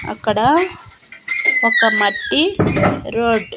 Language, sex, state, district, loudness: Telugu, female, Andhra Pradesh, Annamaya, -15 LUFS